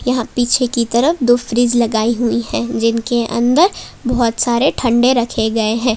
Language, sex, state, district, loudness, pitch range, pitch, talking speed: Hindi, female, Jharkhand, Palamu, -15 LUFS, 230-245 Hz, 240 Hz, 170 wpm